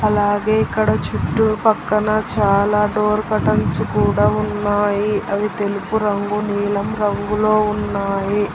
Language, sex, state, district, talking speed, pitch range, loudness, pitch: Telugu, female, Telangana, Hyderabad, 105 wpm, 205-215 Hz, -18 LUFS, 210 Hz